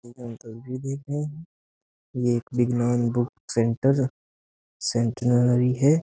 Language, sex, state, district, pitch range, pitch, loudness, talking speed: Hindi, male, Uttar Pradesh, Jyotiba Phule Nagar, 115-130 Hz, 120 Hz, -24 LUFS, 130 wpm